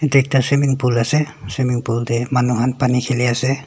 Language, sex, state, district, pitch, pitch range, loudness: Nagamese, male, Nagaland, Dimapur, 125 Hz, 120-135 Hz, -18 LUFS